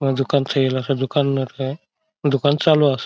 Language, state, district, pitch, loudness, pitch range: Bhili, Maharashtra, Dhule, 140 Hz, -20 LUFS, 135-145 Hz